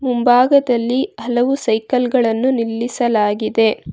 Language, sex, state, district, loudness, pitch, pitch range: Kannada, female, Karnataka, Bangalore, -16 LUFS, 245 Hz, 225-255 Hz